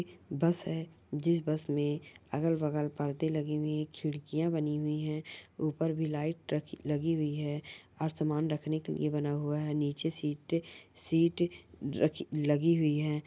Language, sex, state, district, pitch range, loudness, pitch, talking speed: Hindi, female, Chhattisgarh, Korba, 150-160 Hz, -33 LUFS, 150 Hz, 170 wpm